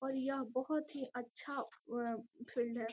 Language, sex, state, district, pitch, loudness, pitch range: Hindi, female, Bihar, Gopalganj, 255 Hz, -41 LUFS, 235-270 Hz